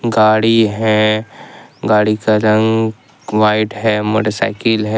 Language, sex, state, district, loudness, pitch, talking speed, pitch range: Hindi, male, Jharkhand, Ranchi, -14 LUFS, 110 Hz, 110 wpm, 105-110 Hz